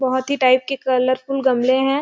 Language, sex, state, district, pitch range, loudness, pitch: Hindi, female, Chhattisgarh, Sarguja, 255-270 Hz, -18 LUFS, 260 Hz